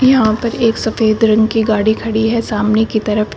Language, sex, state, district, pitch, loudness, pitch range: Hindi, female, Uttar Pradesh, Shamli, 220 Hz, -14 LUFS, 215-225 Hz